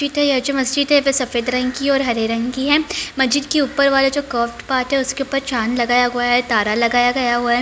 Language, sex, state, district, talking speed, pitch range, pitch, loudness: Hindi, female, Bihar, Begusarai, 245 wpm, 240-275 Hz, 255 Hz, -17 LUFS